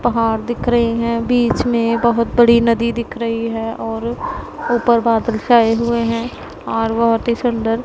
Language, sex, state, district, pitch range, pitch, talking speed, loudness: Hindi, female, Punjab, Pathankot, 230-235 Hz, 235 Hz, 170 wpm, -17 LUFS